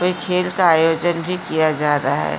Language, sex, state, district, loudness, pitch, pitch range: Hindi, female, Uttarakhand, Uttarkashi, -17 LUFS, 165 Hz, 155-180 Hz